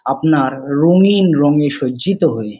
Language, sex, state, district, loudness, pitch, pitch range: Bengali, male, West Bengal, Paschim Medinipur, -14 LUFS, 145 Hz, 135-165 Hz